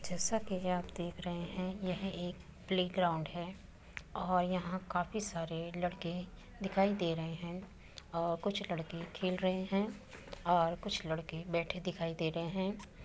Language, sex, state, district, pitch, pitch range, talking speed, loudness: Hindi, female, Uttar Pradesh, Muzaffarnagar, 180 Hz, 170-190 Hz, 145 wpm, -37 LUFS